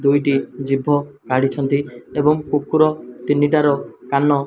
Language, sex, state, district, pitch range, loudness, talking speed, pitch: Odia, male, Odisha, Malkangiri, 135-145 Hz, -19 LUFS, 105 wpm, 145 Hz